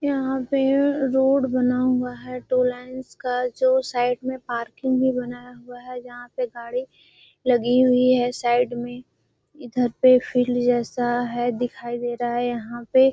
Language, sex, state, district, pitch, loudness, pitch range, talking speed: Hindi, female, Bihar, Gaya, 250 Hz, -22 LUFS, 245-260 Hz, 170 wpm